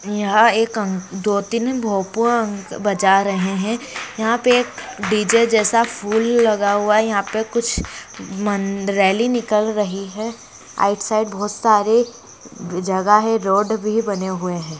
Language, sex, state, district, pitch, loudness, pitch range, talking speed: Hindi, female, West Bengal, Malda, 210 Hz, -18 LUFS, 200-225 Hz, 130 wpm